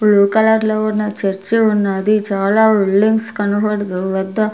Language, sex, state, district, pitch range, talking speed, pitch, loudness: Telugu, female, Andhra Pradesh, Sri Satya Sai, 200-215 Hz, 120 wpm, 210 Hz, -15 LUFS